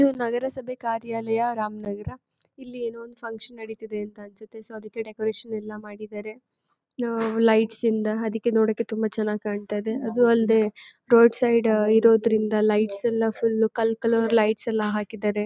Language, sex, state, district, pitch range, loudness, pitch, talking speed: Kannada, female, Karnataka, Chamarajanagar, 215-230 Hz, -23 LUFS, 225 Hz, 135 wpm